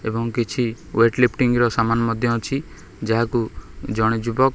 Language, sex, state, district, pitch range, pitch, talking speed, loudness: Odia, male, Odisha, Khordha, 115-120 Hz, 115 Hz, 130 wpm, -21 LUFS